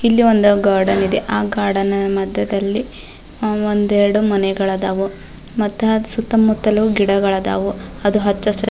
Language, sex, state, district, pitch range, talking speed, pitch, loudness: Kannada, female, Karnataka, Dharwad, 195-215 Hz, 115 wpm, 205 Hz, -17 LUFS